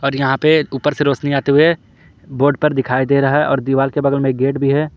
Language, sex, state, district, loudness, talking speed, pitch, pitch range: Hindi, male, Jharkhand, Palamu, -15 LUFS, 275 wpm, 140 Hz, 135-145 Hz